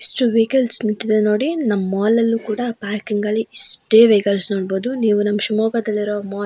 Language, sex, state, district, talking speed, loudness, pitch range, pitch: Kannada, female, Karnataka, Shimoga, 165 wpm, -17 LUFS, 205-230 Hz, 215 Hz